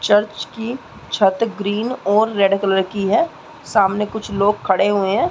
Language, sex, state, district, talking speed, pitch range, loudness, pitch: Hindi, female, Chhattisgarh, Balrampur, 170 wpm, 195-220 Hz, -18 LUFS, 205 Hz